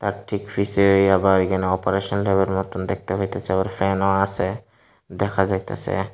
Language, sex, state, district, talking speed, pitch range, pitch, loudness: Bengali, male, Tripura, Unakoti, 145 wpm, 95-100 Hz, 95 Hz, -21 LUFS